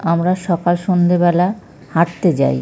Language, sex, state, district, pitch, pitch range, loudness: Bengali, male, West Bengal, North 24 Parganas, 175 Hz, 170-180 Hz, -16 LUFS